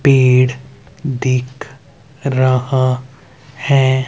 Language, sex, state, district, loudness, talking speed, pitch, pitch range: Hindi, male, Haryana, Rohtak, -16 LUFS, 60 wpm, 130 Hz, 130-135 Hz